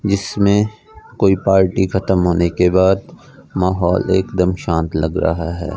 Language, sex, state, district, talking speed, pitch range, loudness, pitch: Hindi, male, Punjab, Fazilka, 135 wpm, 85-95 Hz, -16 LUFS, 95 Hz